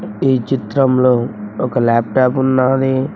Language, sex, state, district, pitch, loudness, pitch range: Telugu, male, Telangana, Mahabubabad, 130 Hz, -15 LUFS, 120-130 Hz